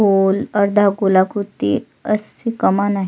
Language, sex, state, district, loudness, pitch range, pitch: Marathi, female, Maharashtra, Solapur, -17 LUFS, 195-210 Hz, 205 Hz